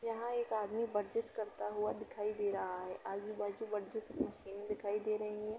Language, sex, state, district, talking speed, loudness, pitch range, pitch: Hindi, female, Uttar Pradesh, Etah, 180 wpm, -40 LUFS, 200-220 Hz, 210 Hz